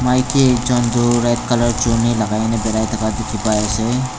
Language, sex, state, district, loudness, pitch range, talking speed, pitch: Nagamese, male, Nagaland, Dimapur, -17 LUFS, 110-120 Hz, 145 wpm, 120 Hz